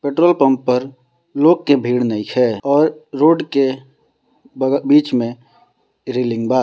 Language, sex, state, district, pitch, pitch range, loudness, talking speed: Bhojpuri, male, Bihar, Gopalganj, 135 Hz, 125-145 Hz, -16 LUFS, 135 wpm